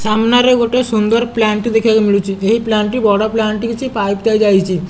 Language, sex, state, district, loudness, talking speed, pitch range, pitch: Odia, male, Odisha, Nuapada, -14 LUFS, 210 wpm, 210-230 Hz, 220 Hz